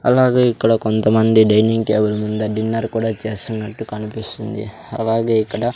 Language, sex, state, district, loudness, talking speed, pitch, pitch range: Telugu, male, Andhra Pradesh, Sri Satya Sai, -17 LUFS, 125 wpm, 110 Hz, 110-115 Hz